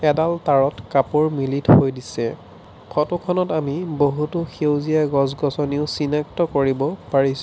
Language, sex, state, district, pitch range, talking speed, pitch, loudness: Assamese, male, Assam, Sonitpur, 135-155 Hz, 120 wpm, 145 Hz, -20 LUFS